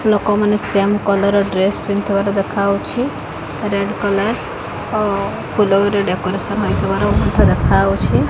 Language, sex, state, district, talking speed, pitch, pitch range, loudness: Odia, female, Odisha, Khordha, 110 wpm, 200 Hz, 200-210 Hz, -17 LUFS